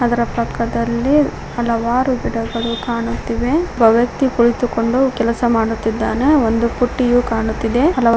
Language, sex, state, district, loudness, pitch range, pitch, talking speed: Kannada, female, Karnataka, Koppal, -17 LUFS, 230-250 Hz, 235 Hz, 110 wpm